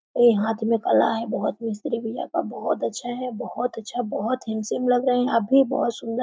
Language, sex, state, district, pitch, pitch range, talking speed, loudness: Hindi, female, Jharkhand, Sahebganj, 240 Hz, 225-250 Hz, 220 wpm, -24 LUFS